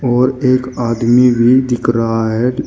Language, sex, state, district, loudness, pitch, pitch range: Hindi, male, Uttar Pradesh, Shamli, -13 LUFS, 125 Hz, 115-130 Hz